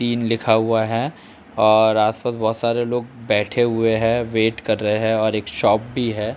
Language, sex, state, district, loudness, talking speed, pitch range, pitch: Hindi, male, Uttar Pradesh, Etah, -19 LUFS, 195 wpm, 110-120 Hz, 110 Hz